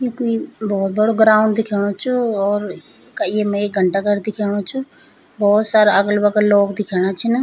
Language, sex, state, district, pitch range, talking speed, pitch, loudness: Garhwali, female, Uttarakhand, Tehri Garhwal, 200-225 Hz, 170 wpm, 210 Hz, -17 LUFS